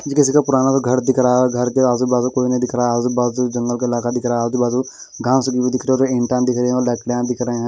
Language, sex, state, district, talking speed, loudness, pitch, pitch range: Hindi, male, Bihar, West Champaran, 290 wpm, -17 LUFS, 125 Hz, 120-130 Hz